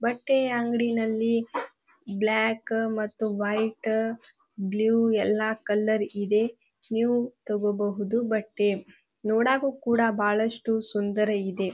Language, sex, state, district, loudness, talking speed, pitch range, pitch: Kannada, female, Karnataka, Bijapur, -26 LUFS, 80 wpm, 210-230 Hz, 220 Hz